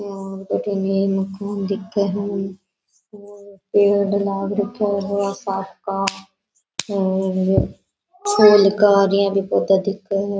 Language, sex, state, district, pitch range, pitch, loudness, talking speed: Rajasthani, female, Rajasthan, Nagaur, 195-200 Hz, 200 Hz, -19 LUFS, 100 wpm